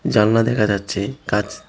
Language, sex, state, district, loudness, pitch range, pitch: Bengali, male, Tripura, West Tripura, -19 LUFS, 105-115 Hz, 105 Hz